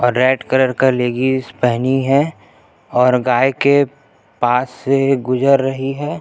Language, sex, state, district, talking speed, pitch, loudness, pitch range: Hindi, male, Chhattisgarh, Jashpur, 145 wpm, 130 Hz, -16 LUFS, 125-135 Hz